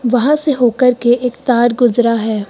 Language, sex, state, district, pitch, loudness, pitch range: Hindi, female, Uttar Pradesh, Lucknow, 245 Hz, -13 LUFS, 235-250 Hz